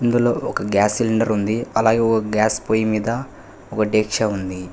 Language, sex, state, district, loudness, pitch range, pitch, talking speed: Telugu, male, Telangana, Hyderabad, -19 LUFS, 105-115 Hz, 110 Hz, 165 wpm